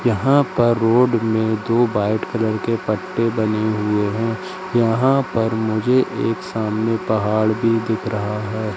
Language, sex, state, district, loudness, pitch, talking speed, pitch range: Hindi, male, Madhya Pradesh, Katni, -19 LUFS, 110 Hz, 150 wpm, 110-115 Hz